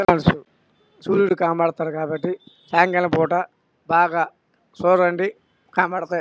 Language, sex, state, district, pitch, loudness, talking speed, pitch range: Telugu, male, Andhra Pradesh, Krishna, 175 Hz, -21 LUFS, 75 wpm, 165-185 Hz